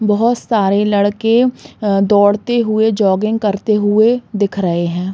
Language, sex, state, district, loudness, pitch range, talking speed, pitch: Hindi, female, Uttar Pradesh, Varanasi, -14 LUFS, 200-220 Hz, 140 wpm, 210 Hz